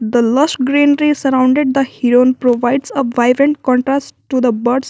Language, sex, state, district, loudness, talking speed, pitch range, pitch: English, female, Jharkhand, Garhwa, -14 LUFS, 160 wpm, 245-280 Hz, 260 Hz